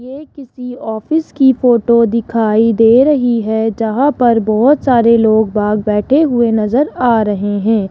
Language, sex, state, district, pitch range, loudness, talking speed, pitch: Hindi, male, Rajasthan, Jaipur, 220-260 Hz, -12 LUFS, 160 wpm, 230 Hz